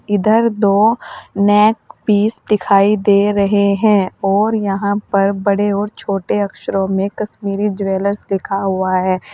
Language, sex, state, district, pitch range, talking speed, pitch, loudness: Hindi, female, Uttar Pradesh, Saharanpur, 195-210 Hz, 135 wpm, 200 Hz, -15 LUFS